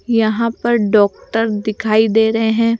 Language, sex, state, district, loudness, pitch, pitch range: Hindi, female, Rajasthan, Jaipur, -15 LUFS, 225 Hz, 215-230 Hz